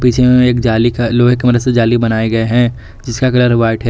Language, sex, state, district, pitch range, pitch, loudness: Hindi, male, Jharkhand, Garhwa, 115-125 Hz, 120 Hz, -12 LUFS